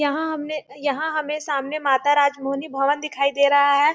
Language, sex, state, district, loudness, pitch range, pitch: Hindi, female, Chhattisgarh, Sarguja, -21 LUFS, 280-300 Hz, 285 Hz